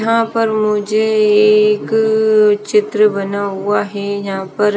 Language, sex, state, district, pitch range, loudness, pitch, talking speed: Hindi, female, Haryana, Charkhi Dadri, 205-215 Hz, -14 LUFS, 210 Hz, 125 wpm